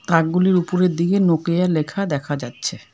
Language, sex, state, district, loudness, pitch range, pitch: Bengali, female, West Bengal, Alipurduar, -19 LUFS, 155-180 Hz, 170 Hz